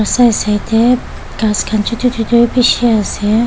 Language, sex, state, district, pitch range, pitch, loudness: Nagamese, female, Nagaland, Dimapur, 215-240 Hz, 225 Hz, -13 LUFS